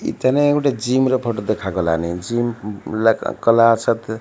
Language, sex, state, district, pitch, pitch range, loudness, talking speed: Odia, male, Odisha, Malkangiri, 115 Hz, 105-125 Hz, -18 LUFS, 155 wpm